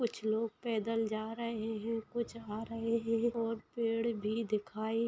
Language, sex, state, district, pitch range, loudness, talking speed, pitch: Hindi, female, Bihar, Saran, 220-230 Hz, -36 LUFS, 175 wpm, 225 Hz